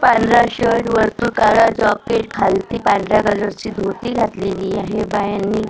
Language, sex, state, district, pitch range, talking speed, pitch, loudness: Marathi, female, Maharashtra, Gondia, 205-230 Hz, 125 wpm, 215 Hz, -16 LUFS